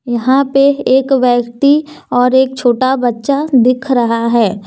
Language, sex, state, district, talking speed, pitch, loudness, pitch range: Hindi, female, Jharkhand, Deoghar, 140 wpm, 255 Hz, -12 LUFS, 240-275 Hz